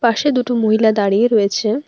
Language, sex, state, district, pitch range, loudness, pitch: Bengali, female, West Bengal, Alipurduar, 215-245 Hz, -15 LUFS, 225 Hz